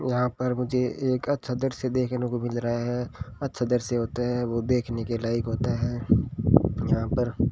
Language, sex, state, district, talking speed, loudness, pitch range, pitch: Hindi, male, Rajasthan, Bikaner, 190 wpm, -27 LUFS, 120-125 Hz, 120 Hz